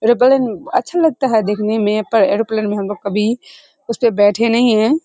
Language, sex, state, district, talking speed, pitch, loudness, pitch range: Hindi, female, Bihar, Kishanganj, 180 wpm, 225 Hz, -15 LUFS, 210-240 Hz